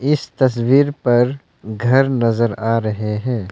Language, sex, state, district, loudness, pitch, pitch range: Hindi, male, Arunachal Pradesh, Longding, -17 LUFS, 120 Hz, 115-135 Hz